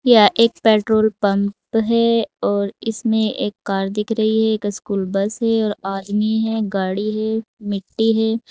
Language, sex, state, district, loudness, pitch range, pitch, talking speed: Hindi, female, Uttar Pradesh, Saharanpur, -19 LUFS, 200-225 Hz, 220 Hz, 160 wpm